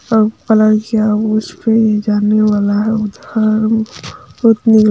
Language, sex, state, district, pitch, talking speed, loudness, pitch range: Hindi, female, Bihar, Sitamarhi, 215 Hz, 75 wpm, -13 LUFS, 210-220 Hz